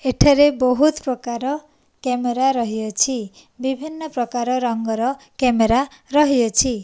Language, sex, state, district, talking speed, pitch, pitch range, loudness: Odia, female, Odisha, Nuapada, 90 wpm, 255 Hz, 240-275 Hz, -19 LUFS